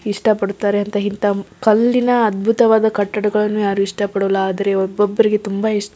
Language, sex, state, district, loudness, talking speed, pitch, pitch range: Kannada, female, Karnataka, Belgaum, -17 LUFS, 130 wpm, 205 Hz, 200-220 Hz